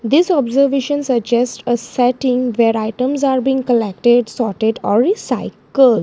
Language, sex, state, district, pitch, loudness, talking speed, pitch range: English, female, Gujarat, Valsad, 250 Hz, -16 LUFS, 130 wpm, 235-270 Hz